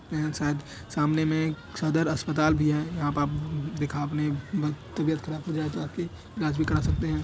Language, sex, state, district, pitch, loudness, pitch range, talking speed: Hindi, male, Bihar, Madhepura, 155 Hz, -28 LUFS, 145-155 Hz, 215 wpm